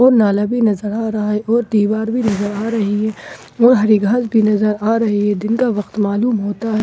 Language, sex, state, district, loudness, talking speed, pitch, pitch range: Hindi, female, Bihar, Katihar, -16 LUFS, 245 wpm, 215 Hz, 210-230 Hz